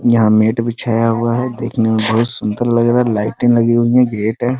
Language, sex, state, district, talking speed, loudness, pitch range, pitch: Hindi, male, Bihar, Muzaffarpur, 235 wpm, -14 LUFS, 110-120 Hz, 115 Hz